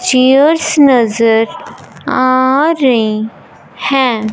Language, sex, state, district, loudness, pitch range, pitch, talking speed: Hindi, male, Punjab, Fazilka, -11 LUFS, 230-285 Hz, 255 Hz, 70 wpm